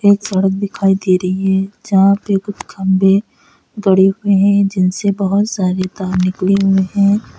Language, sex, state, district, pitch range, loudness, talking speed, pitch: Hindi, female, Uttar Pradesh, Lalitpur, 190-200 Hz, -14 LUFS, 155 wpm, 195 Hz